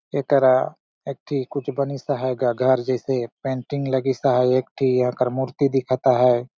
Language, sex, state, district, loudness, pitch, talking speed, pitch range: Surgujia, male, Chhattisgarh, Sarguja, -21 LUFS, 130 Hz, 175 wpm, 125-140 Hz